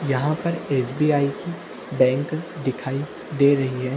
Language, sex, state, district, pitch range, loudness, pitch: Hindi, male, Uttarakhand, Tehri Garhwal, 130-150 Hz, -23 LUFS, 140 Hz